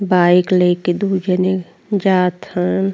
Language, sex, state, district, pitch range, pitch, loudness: Bhojpuri, female, Uttar Pradesh, Ghazipur, 180-190 Hz, 185 Hz, -16 LUFS